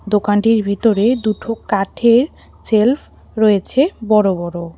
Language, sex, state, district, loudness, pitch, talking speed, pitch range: Bengali, female, West Bengal, Alipurduar, -16 LUFS, 215 Hz, 100 wpm, 200-230 Hz